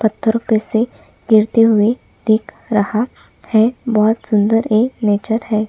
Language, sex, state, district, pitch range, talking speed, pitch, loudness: Hindi, female, Chhattisgarh, Sukma, 215-230 Hz, 135 wpm, 220 Hz, -16 LUFS